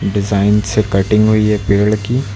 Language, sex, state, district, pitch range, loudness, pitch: Hindi, male, Uttar Pradesh, Lucknow, 100-105 Hz, -14 LUFS, 105 Hz